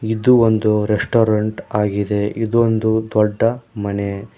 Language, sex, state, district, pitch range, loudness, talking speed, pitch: Kannada, male, Karnataka, Koppal, 105-115 Hz, -17 LUFS, 95 wpm, 110 Hz